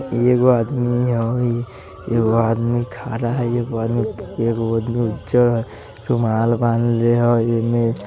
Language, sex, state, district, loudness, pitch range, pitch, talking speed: Bajjika, male, Bihar, Vaishali, -19 LUFS, 115-120 Hz, 115 Hz, 125 wpm